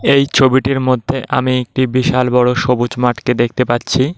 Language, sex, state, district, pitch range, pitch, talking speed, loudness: Bengali, male, West Bengal, Cooch Behar, 125-130 Hz, 130 Hz, 160 wpm, -14 LUFS